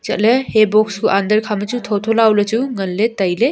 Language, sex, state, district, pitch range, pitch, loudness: Wancho, female, Arunachal Pradesh, Longding, 205-230 Hz, 215 Hz, -16 LUFS